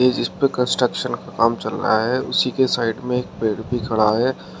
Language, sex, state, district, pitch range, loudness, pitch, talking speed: Hindi, male, Uttar Pradesh, Shamli, 110-125 Hz, -20 LUFS, 125 Hz, 235 wpm